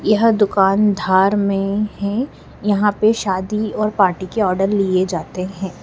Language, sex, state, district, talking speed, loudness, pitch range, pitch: Hindi, female, Madhya Pradesh, Dhar, 155 wpm, -17 LUFS, 190-210 Hz, 200 Hz